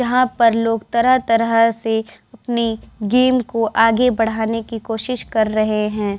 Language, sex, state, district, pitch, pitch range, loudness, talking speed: Hindi, female, Bihar, Vaishali, 230 Hz, 220-240 Hz, -18 LUFS, 145 wpm